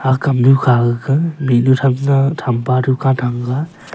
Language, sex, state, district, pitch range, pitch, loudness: Wancho, male, Arunachal Pradesh, Longding, 125-135 Hz, 130 Hz, -15 LUFS